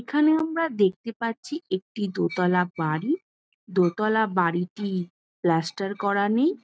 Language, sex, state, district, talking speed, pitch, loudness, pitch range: Bengali, female, West Bengal, Jhargram, 115 wpm, 200 Hz, -25 LUFS, 180-235 Hz